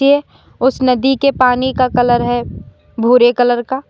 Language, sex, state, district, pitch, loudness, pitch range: Hindi, female, Uttar Pradesh, Lalitpur, 250 Hz, -13 LUFS, 245-265 Hz